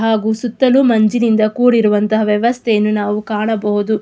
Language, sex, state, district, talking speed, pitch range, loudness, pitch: Kannada, female, Karnataka, Mysore, 105 wpm, 210-230 Hz, -14 LUFS, 220 Hz